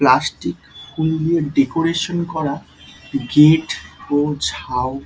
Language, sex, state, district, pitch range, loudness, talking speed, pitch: Bengali, male, West Bengal, Dakshin Dinajpur, 135-160 Hz, -18 LUFS, 95 wpm, 150 Hz